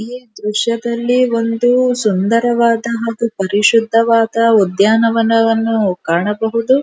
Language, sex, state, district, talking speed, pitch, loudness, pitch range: Kannada, female, Karnataka, Dharwad, 70 wpm, 230 Hz, -14 LUFS, 220-235 Hz